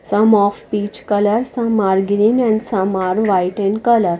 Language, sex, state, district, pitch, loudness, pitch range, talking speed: English, female, Odisha, Nuapada, 205 Hz, -16 LUFS, 195-225 Hz, 185 wpm